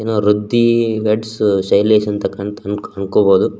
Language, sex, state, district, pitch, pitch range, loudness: Kannada, male, Karnataka, Shimoga, 105 Hz, 105-110 Hz, -16 LUFS